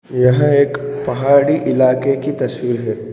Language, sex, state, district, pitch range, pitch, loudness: Hindi, male, Arunachal Pradesh, Lower Dibang Valley, 125-140 Hz, 135 Hz, -15 LUFS